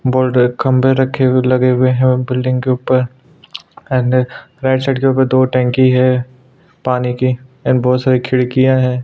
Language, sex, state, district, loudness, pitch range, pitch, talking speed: Hindi, male, Uttarakhand, Tehri Garhwal, -14 LUFS, 125-130 Hz, 130 Hz, 165 wpm